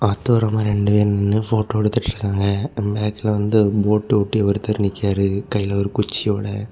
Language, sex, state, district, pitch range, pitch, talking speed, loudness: Tamil, male, Tamil Nadu, Kanyakumari, 100-110 Hz, 105 Hz, 145 wpm, -19 LUFS